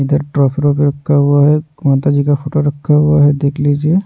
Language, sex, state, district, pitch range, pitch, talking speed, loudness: Hindi, male, Odisha, Nuapada, 145-150 Hz, 145 Hz, 205 wpm, -13 LUFS